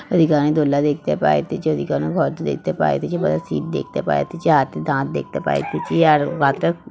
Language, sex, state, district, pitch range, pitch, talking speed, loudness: Bengali, female, West Bengal, Jhargram, 140-165 Hz, 150 Hz, 175 wpm, -19 LUFS